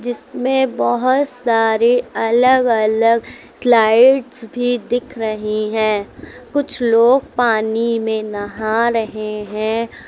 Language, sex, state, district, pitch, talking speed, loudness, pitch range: Hindi, female, Uttar Pradesh, Lucknow, 230 Hz, 95 wpm, -16 LUFS, 220-245 Hz